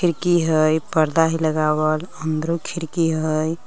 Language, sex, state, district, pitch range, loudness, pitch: Magahi, female, Jharkhand, Palamu, 155-165 Hz, -20 LUFS, 160 Hz